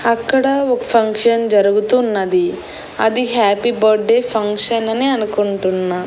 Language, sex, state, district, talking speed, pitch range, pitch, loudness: Telugu, female, Andhra Pradesh, Annamaya, 100 wpm, 205-240 Hz, 225 Hz, -15 LUFS